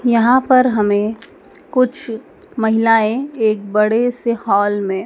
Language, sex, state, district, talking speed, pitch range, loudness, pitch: Hindi, female, Madhya Pradesh, Dhar, 120 wpm, 215-255 Hz, -16 LUFS, 225 Hz